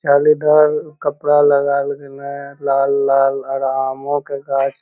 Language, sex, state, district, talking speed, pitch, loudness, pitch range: Magahi, male, Bihar, Lakhisarai, 125 wpm, 140 Hz, -16 LUFS, 135-145 Hz